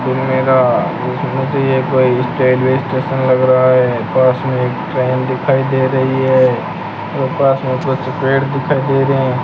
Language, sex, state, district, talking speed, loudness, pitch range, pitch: Hindi, male, Rajasthan, Bikaner, 135 wpm, -14 LUFS, 130-135 Hz, 130 Hz